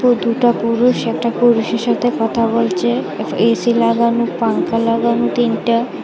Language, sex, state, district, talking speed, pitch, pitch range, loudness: Bengali, female, Tripura, West Tripura, 120 wpm, 235 Hz, 230-240 Hz, -16 LUFS